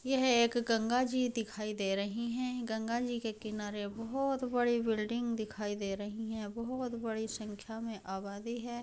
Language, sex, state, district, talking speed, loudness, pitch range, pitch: Hindi, female, Uttar Pradesh, Jyotiba Phule Nagar, 155 wpm, -35 LUFS, 215-240 Hz, 225 Hz